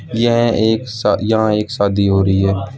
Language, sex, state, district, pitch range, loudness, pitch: Hindi, male, Arunachal Pradesh, Lower Dibang Valley, 100-115 Hz, -15 LUFS, 110 Hz